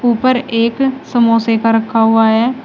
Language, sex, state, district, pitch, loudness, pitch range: Hindi, female, Uttar Pradesh, Shamli, 230 Hz, -13 LUFS, 225-250 Hz